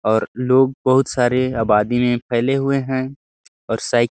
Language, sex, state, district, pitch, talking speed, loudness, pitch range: Hindi, male, Chhattisgarh, Sarguja, 125 Hz, 175 wpm, -18 LUFS, 120-130 Hz